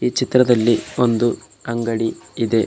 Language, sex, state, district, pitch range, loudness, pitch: Kannada, male, Karnataka, Bidar, 115-120 Hz, -19 LUFS, 115 Hz